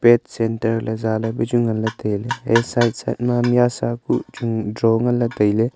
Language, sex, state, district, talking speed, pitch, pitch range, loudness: Wancho, male, Arunachal Pradesh, Longding, 200 wpm, 115 Hz, 110-120 Hz, -20 LUFS